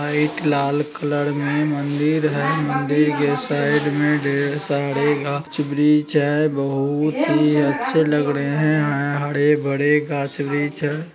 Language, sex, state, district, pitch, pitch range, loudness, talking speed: Magahi, male, Bihar, Gaya, 145 Hz, 145-150 Hz, -20 LUFS, 160 wpm